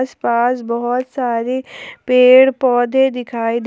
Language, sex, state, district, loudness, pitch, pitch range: Hindi, female, Jharkhand, Palamu, -15 LUFS, 250 Hz, 240-260 Hz